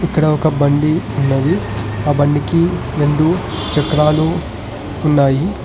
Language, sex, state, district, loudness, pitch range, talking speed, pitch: Telugu, male, Telangana, Hyderabad, -15 LUFS, 135-155 Hz, 105 wpm, 145 Hz